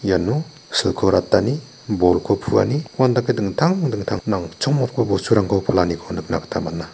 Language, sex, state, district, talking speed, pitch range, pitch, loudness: Garo, male, Meghalaya, West Garo Hills, 120 wpm, 95-135 Hz, 115 Hz, -20 LUFS